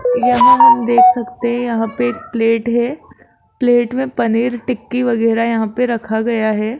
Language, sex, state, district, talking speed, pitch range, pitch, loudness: Hindi, female, Rajasthan, Jaipur, 165 wpm, 230-245 Hz, 240 Hz, -15 LUFS